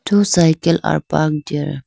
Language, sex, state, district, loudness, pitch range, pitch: English, female, Arunachal Pradesh, Lower Dibang Valley, -16 LUFS, 150-175 Hz, 160 Hz